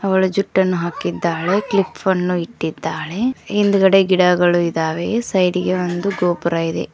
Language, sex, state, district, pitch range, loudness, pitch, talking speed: Kannada, male, Karnataka, Koppal, 170-195 Hz, -18 LUFS, 180 Hz, 120 wpm